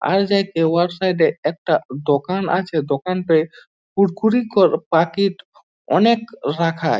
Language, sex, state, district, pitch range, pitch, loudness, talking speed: Bengali, male, West Bengal, Jhargram, 160-200 Hz, 180 Hz, -19 LUFS, 105 wpm